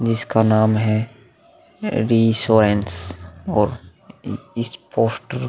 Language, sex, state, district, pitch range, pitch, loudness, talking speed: Hindi, male, Uttar Pradesh, Muzaffarnagar, 100-115 Hz, 110 Hz, -19 LUFS, 75 wpm